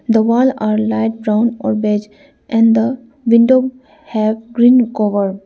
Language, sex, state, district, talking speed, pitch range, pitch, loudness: English, female, Arunachal Pradesh, Lower Dibang Valley, 145 wpm, 215-255 Hz, 225 Hz, -14 LUFS